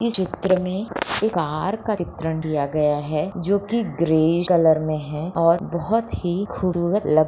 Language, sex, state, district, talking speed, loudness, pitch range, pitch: Hindi, female, Jharkhand, Sahebganj, 175 wpm, -21 LUFS, 155-195 Hz, 175 Hz